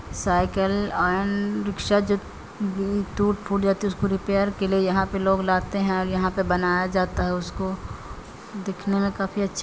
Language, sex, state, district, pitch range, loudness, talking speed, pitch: Maithili, female, Bihar, Samastipur, 190-200 Hz, -24 LUFS, 170 wpm, 195 Hz